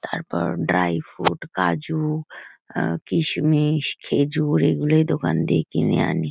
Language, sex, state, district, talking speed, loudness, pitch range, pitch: Bengali, female, West Bengal, Kolkata, 125 wpm, -21 LUFS, 140-155 Hz, 155 Hz